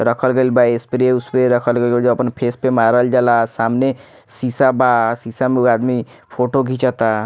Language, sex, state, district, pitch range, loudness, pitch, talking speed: Bhojpuri, male, Bihar, Muzaffarpur, 120-130 Hz, -16 LUFS, 125 Hz, 190 wpm